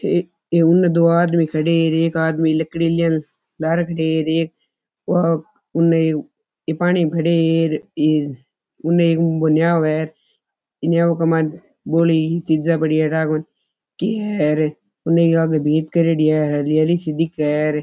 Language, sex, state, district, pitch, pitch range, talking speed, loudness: Rajasthani, male, Rajasthan, Churu, 165 Hz, 155-170 Hz, 160 wpm, -18 LUFS